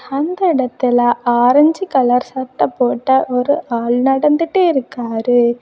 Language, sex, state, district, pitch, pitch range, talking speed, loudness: Tamil, female, Tamil Nadu, Kanyakumari, 260 Hz, 245-290 Hz, 105 wpm, -15 LUFS